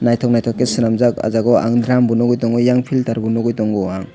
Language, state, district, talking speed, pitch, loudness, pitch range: Kokborok, Tripura, West Tripura, 245 wpm, 120 Hz, -16 LUFS, 115-120 Hz